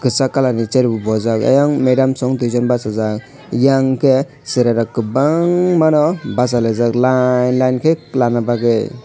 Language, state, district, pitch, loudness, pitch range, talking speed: Kokborok, Tripura, West Tripura, 130 Hz, -15 LUFS, 120-135 Hz, 160 wpm